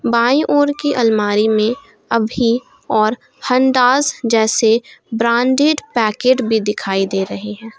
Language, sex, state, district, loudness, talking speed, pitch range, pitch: Hindi, female, Jharkhand, Garhwa, -15 LUFS, 125 wpm, 220-260 Hz, 235 Hz